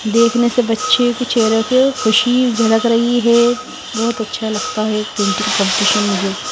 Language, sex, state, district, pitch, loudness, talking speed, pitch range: Hindi, female, Himachal Pradesh, Shimla, 230 Hz, -15 LUFS, 165 wpm, 215-245 Hz